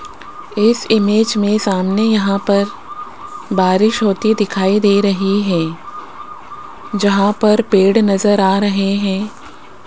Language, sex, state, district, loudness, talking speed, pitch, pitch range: Hindi, female, Rajasthan, Jaipur, -14 LUFS, 115 wpm, 205 Hz, 195-215 Hz